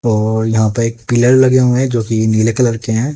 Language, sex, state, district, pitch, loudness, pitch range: Hindi, male, Haryana, Jhajjar, 115 Hz, -13 LUFS, 110-125 Hz